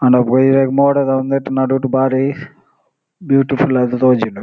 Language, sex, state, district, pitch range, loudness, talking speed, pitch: Tulu, male, Karnataka, Dakshina Kannada, 130-135 Hz, -14 LUFS, 120 wpm, 135 Hz